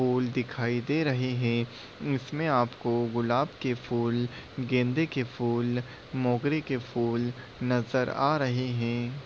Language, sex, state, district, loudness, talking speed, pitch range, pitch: Hindi, male, Uttar Pradesh, Deoria, -29 LUFS, 130 wpm, 120-130 Hz, 125 Hz